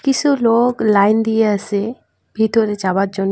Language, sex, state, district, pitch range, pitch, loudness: Bengali, female, West Bengal, Cooch Behar, 200-230 Hz, 220 Hz, -16 LUFS